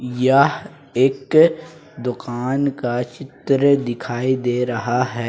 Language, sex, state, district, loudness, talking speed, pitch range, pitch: Hindi, male, Jharkhand, Ranchi, -19 LUFS, 100 wpm, 125-140 Hz, 130 Hz